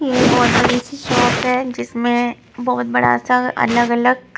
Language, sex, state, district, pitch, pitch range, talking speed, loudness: Hindi, female, Punjab, Pathankot, 245 Hz, 240-250 Hz, 80 wpm, -16 LUFS